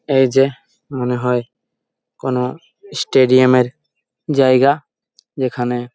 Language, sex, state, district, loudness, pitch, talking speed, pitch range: Bengali, male, West Bengal, Malda, -16 LUFS, 130 Hz, 90 wpm, 125-145 Hz